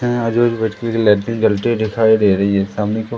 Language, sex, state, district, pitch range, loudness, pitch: Hindi, male, Madhya Pradesh, Umaria, 105-115 Hz, -16 LUFS, 110 Hz